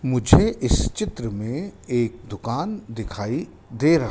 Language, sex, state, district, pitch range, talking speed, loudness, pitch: Hindi, male, Madhya Pradesh, Dhar, 110-135 Hz, 130 wpm, -23 LUFS, 120 Hz